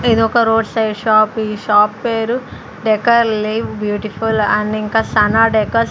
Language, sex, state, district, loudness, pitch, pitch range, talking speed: Telugu, female, Andhra Pradesh, Sri Satya Sai, -15 LUFS, 220 Hz, 215-225 Hz, 140 wpm